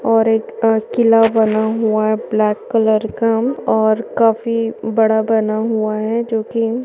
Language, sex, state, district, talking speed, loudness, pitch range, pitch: Hindi, female, Chhattisgarh, Kabirdham, 140 wpm, -16 LUFS, 220-225 Hz, 225 Hz